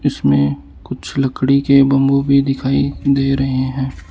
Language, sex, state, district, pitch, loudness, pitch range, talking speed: Hindi, male, Arunachal Pradesh, Lower Dibang Valley, 135 Hz, -15 LUFS, 130-140 Hz, 160 wpm